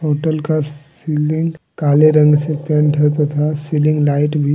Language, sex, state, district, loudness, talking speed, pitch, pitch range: Hindi, male, Jharkhand, Deoghar, -15 LUFS, 160 wpm, 150 Hz, 150-155 Hz